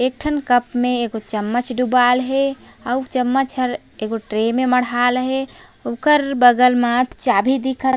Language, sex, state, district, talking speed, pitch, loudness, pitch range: Chhattisgarhi, female, Chhattisgarh, Raigarh, 175 wpm, 250 Hz, -18 LUFS, 245-265 Hz